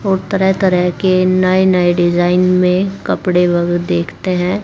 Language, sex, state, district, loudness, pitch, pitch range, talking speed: Hindi, female, Haryana, Jhajjar, -14 LUFS, 180 Hz, 175-190 Hz, 155 wpm